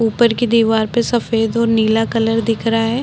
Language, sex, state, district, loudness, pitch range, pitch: Hindi, female, Uttar Pradesh, Budaun, -16 LUFS, 225-235 Hz, 225 Hz